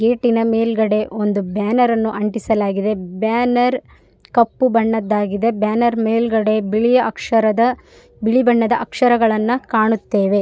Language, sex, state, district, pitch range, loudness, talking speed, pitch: Kannada, female, Karnataka, Raichur, 215-235 Hz, -17 LUFS, 90 wpm, 225 Hz